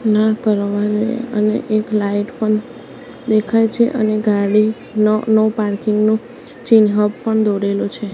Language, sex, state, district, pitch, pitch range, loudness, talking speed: Gujarati, female, Gujarat, Gandhinagar, 215 Hz, 210-225 Hz, -16 LUFS, 135 wpm